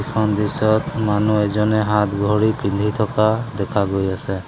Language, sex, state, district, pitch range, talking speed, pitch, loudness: Assamese, male, Assam, Sonitpur, 100-110 Hz, 135 wpm, 105 Hz, -19 LUFS